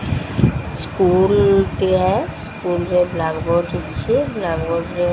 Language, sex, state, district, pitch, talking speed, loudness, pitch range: Odia, female, Odisha, Sambalpur, 175 Hz, 115 wpm, -18 LUFS, 170-190 Hz